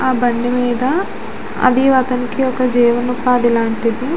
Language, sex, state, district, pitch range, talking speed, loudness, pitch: Telugu, female, Andhra Pradesh, Visakhapatnam, 240-260 Hz, 115 wpm, -15 LUFS, 250 Hz